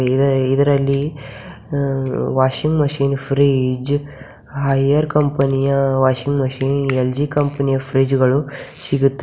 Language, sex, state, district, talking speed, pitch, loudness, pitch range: Kannada, female, Karnataka, Bidar, 100 wpm, 135 Hz, -17 LUFS, 135-140 Hz